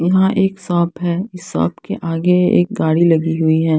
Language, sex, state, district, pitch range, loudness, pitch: Hindi, female, Punjab, Fazilka, 160-180 Hz, -16 LUFS, 170 Hz